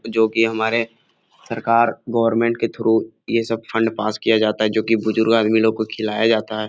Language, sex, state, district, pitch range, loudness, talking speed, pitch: Hindi, male, Bihar, Jahanabad, 110-115 Hz, -19 LUFS, 215 wpm, 115 Hz